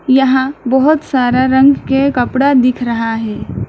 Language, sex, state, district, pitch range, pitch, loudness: Hindi, female, West Bengal, Alipurduar, 245-270 Hz, 260 Hz, -13 LUFS